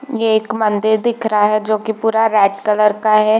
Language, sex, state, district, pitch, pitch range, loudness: Hindi, female, Bihar, Darbhanga, 215 Hz, 210-220 Hz, -15 LUFS